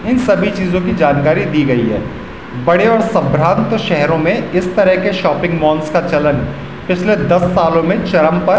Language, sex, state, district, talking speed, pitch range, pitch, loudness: Hindi, male, Uttarakhand, Tehri Garhwal, 190 wpm, 155-195 Hz, 175 Hz, -13 LUFS